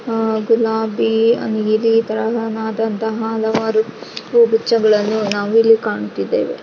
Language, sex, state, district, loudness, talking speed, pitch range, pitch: Kannada, female, Karnataka, Raichur, -17 LUFS, 80 wpm, 220-225 Hz, 220 Hz